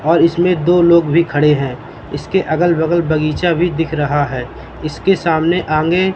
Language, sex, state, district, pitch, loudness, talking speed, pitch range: Hindi, male, Madhya Pradesh, Katni, 165 Hz, -14 LUFS, 175 wpm, 155-175 Hz